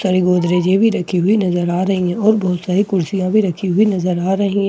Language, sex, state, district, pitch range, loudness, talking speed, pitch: Hindi, female, Bihar, Katihar, 180-200 Hz, -16 LUFS, 255 wpm, 185 Hz